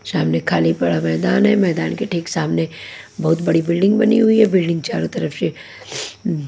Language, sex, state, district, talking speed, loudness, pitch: Hindi, female, Haryana, Jhajjar, 185 wpm, -18 LUFS, 170 Hz